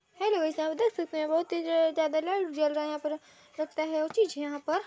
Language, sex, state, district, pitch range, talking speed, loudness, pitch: Hindi, female, Chhattisgarh, Balrampur, 310-345 Hz, 270 wpm, -30 LUFS, 315 Hz